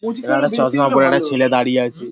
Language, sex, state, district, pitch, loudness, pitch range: Bengali, male, West Bengal, Paschim Medinipur, 135 Hz, -16 LUFS, 125-195 Hz